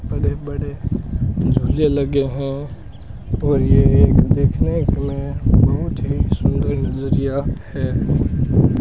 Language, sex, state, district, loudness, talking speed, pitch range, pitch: Hindi, male, Rajasthan, Bikaner, -18 LUFS, 95 wpm, 105-140 Hz, 135 Hz